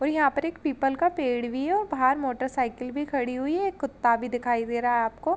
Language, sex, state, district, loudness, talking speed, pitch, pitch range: Hindi, female, Uttar Pradesh, Jalaun, -26 LUFS, 270 wpm, 270 Hz, 245-295 Hz